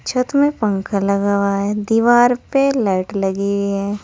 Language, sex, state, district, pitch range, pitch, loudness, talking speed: Hindi, female, Uttar Pradesh, Saharanpur, 200-240 Hz, 205 Hz, -17 LUFS, 165 wpm